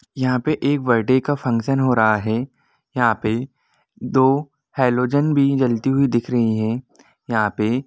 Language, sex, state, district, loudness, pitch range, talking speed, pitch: Hindi, male, Jharkhand, Jamtara, -19 LUFS, 115-135 Hz, 150 wpm, 125 Hz